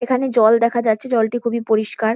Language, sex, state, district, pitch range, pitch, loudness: Bengali, female, West Bengal, Kolkata, 220-240 Hz, 230 Hz, -17 LUFS